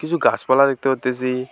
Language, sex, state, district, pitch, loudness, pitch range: Bengali, male, West Bengal, Alipurduar, 130 Hz, -19 LUFS, 130-140 Hz